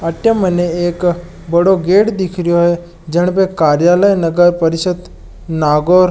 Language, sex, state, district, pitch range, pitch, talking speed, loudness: Marwari, male, Rajasthan, Nagaur, 170-185 Hz, 175 Hz, 140 wpm, -13 LUFS